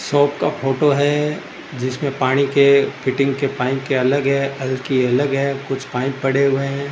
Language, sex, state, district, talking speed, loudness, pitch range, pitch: Hindi, male, Rajasthan, Bikaner, 180 wpm, -18 LUFS, 130-140 Hz, 140 Hz